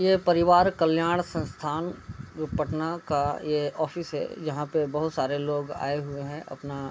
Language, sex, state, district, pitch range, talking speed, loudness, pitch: Hindi, male, Bihar, East Champaran, 145-165 Hz, 175 wpm, -27 LUFS, 155 Hz